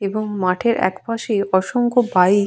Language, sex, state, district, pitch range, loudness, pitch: Bengali, female, West Bengal, Purulia, 190-230 Hz, -19 LUFS, 205 Hz